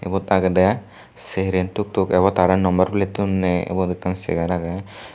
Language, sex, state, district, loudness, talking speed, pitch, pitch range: Chakma, male, Tripura, Dhalai, -20 LUFS, 165 wpm, 95 Hz, 90-95 Hz